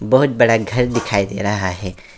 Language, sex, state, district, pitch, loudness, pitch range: Hindi, male, West Bengal, Alipurduar, 105 Hz, -17 LUFS, 100-120 Hz